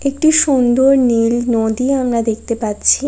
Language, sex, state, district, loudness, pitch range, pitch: Bengali, female, West Bengal, Kolkata, -14 LUFS, 230-275 Hz, 245 Hz